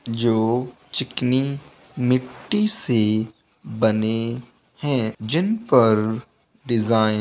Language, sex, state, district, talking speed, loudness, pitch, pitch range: Hindi, male, Bihar, Bhagalpur, 85 wpm, -21 LUFS, 120 Hz, 110-135 Hz